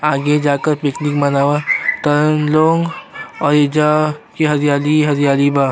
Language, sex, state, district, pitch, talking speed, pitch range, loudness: Bhojpuri, male, Uttar Pradesh, Deoria, 150 Hz, 125 wpm, 145-155 Hz, -15 LUFS